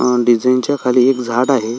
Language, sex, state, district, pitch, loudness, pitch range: Marathi, male, Maharashtra, Solapur, 125 Hz, -14 LUFS, 120-130 Hz